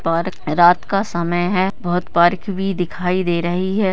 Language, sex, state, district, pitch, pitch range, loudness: Hindi, male, Rajasthan, Nagaur, 180 Hz, 175-190 Hz, -18 LUFS